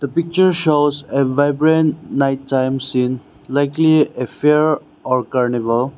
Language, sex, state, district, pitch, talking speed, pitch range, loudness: English, male, Nagaland, Dimapur, 140 Hz, 130 wpm, 130-155 Hz, -17 LUFS